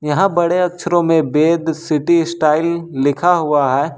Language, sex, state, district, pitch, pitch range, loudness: Hindi, male, Jharkhand, Ranchi, 165 Hz, 150-170 Hz, -15 LUFS